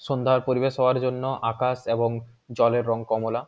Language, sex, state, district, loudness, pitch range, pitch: Bengali, male, West Bengal, Jhargram, -24 LUFS, 115-130 Hz, 120 Hz